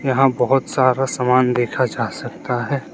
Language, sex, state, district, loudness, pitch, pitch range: Hindi, male, Arunachal Pradesh, Lower Dibang Valley, -18 LUFS, 130 Hz, 125-135 Hz